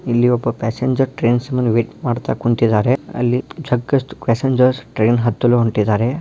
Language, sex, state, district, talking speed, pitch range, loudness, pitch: Kannada, male, Karnataka, Dharwad, 125 wpm, 115-130 Hz, -17 LUFS, 120 Hz